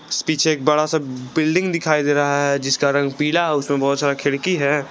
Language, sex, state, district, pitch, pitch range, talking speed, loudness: Hindi, male, Jharkhand, Garhwa, 145 Hz, 140-155 Hz, 220 wpm, -19 LUFS